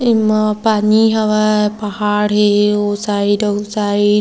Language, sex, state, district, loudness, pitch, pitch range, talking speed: Hindi, female, Chhattisgarh, Kabirdham, -14 LUFS, 210 Hz, 205-215 Hz, 145 wpm